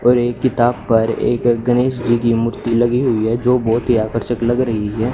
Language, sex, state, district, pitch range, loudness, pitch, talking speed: Hindi, male, Haryana, Charkhi Dadri, 115-125 Hz, -16 LUFS, 120 Hz, 220 wpm